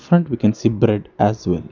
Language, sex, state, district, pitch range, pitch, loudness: English, male, Karnataka, Bangalore, 105-120 Hz, 110 Hz, -18 LUFS